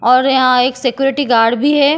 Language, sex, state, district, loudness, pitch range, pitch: Hindi, female, Uttar Pradesh, Jyotiba Phule Nagar, -13 LUFS, 250-275 Hz, 260 Hz